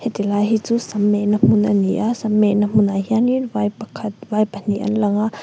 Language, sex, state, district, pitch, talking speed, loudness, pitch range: Mizo, female, Mizoram, Aizawl, 210 Hz, 230 wpm, -18 LUFS, 205-220 Hz